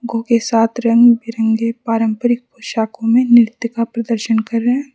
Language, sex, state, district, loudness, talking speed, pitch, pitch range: Hindi, female, Mizoram, Aizawl, -15 LUFS, 170 wpm, 230 Hz, 225-240 Hz